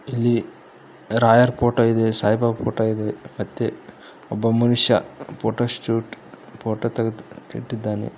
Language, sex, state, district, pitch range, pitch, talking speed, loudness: Kannada, male, Karnataka, Koppal, 110-120 Hz, 115 Hz, 110 wpm, -21 LUFS